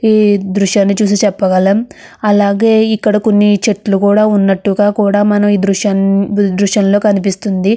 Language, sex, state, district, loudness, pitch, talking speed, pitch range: Telugu, female, Andhra Pradesh, Krishna, -11 LUFS, 205 Hz, 125 wpm, 195-210 Hz